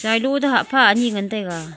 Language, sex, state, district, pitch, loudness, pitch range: Wancho, female, Arunachal Pradesh, Longding, 220 Hz, -18 LUFS, 200-260 Hz